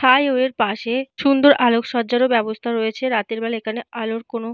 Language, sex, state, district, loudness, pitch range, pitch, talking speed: Bengali, female, Jharkhand, Jamtara, -19 LUFS, 225-255 Hz, 235 Hz, 170 wpm